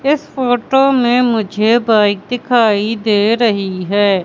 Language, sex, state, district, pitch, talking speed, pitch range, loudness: Hindi, female, Madhya Pradesh, Katni, 225 Hz, 125 wpm, 205-245 Hz, -14 LUFS